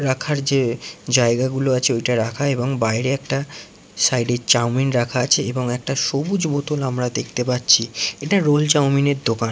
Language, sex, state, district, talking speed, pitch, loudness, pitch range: Bengali, male, West Bengal, Jalpaiguri, 180 wpm, 130 Hz, -19 LUFS, 120-140 Hz